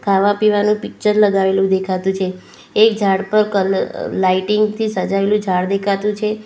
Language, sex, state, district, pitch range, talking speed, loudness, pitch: Gujarati, female, Gujarat, Valsad, 190-210 Hz, 150 wpm, -16 LUFS, 200 Hz